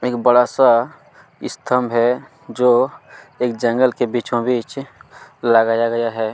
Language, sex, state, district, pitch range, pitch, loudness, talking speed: Hindi, male, Chhattisgarh, Kabirdham, 115-125 Hz, 120 Hz, -17 LUFS, 125 wpm